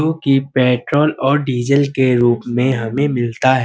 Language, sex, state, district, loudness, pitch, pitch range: Hindi, male, Uttar Pradesh, Budaun, -16 LUFS, 130 Hz, 120-140 Hz